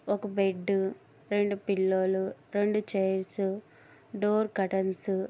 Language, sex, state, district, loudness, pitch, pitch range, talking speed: Telugu, female, Andhra Pradesh, Guntur, -29 LUFS, 195 Hz, 190-205 Hz, 100 wpm